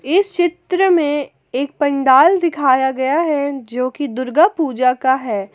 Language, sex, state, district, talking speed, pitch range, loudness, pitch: Hindi, female, Jharkhand, Garhwa, 150 wpm, 260-330 Hz, -16 LUFS, 285 Hz